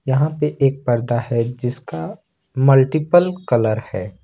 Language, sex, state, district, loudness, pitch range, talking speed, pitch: Hindi, male, Jharkhand, Ranchi, -18 LUFS, 115-140 Hz, 125 wpm, 125 Hz